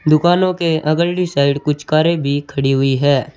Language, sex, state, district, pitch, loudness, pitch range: Hindi, male, Uttar Pradesh, Saharanpur, 150 Hz, -16 LUFS, 140-170 Hz